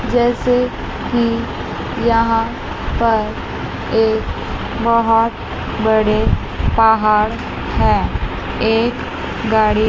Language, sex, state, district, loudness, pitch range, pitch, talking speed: Hindi, female, Chandigarh, Chandigarh, -17 LUFS, 215-230 Hz, 225 Hz, 65 wpm